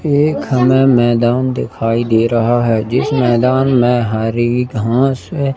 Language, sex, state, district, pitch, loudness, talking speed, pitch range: Hindi, male, Madhya Pradesh, Katni, 125 Hz, -14 LUFS, 140 wpm, 120-130 Hz